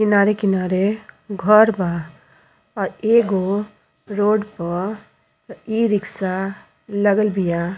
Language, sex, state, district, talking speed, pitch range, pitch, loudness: Bhojpuri, female, Uttar Pradesh, Ghazipur, 85 wpm, 190-215 Hz, 205 Hz, -19 LUFS